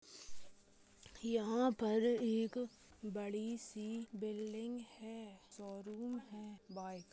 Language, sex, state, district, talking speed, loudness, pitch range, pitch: Hindi, female, Chhattisgarh, Raigarh, 95 wpm, -42 LUFS, 210-230 Hz, 220 Hz